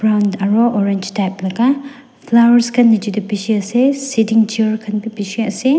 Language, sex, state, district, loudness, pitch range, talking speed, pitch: Nagamese, female, Nagaland, Dimapur, -15 LUFS, 205-240 Hz, 155 wpm, 220 Hz